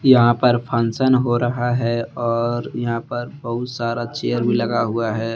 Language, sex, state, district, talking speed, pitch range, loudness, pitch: Hindi, male, Jharkhand, Deoghar, 180 wpm, 115-120 Hz, -20 LUFS, 120 Hz